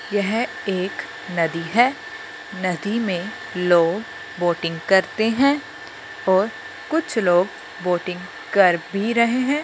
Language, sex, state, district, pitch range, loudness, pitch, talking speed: Hindi, male, Punjab, Fazilka, 175-225 Hz, -21 LUFS, 190 Hz, 110 wpm